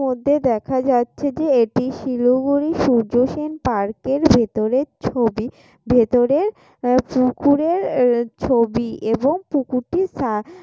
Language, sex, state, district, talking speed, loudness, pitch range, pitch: Bengali, female, West Bengal, Jalpaiguri, 100 wpm, -19 LUFS, 240-285 Hz, 255 Hz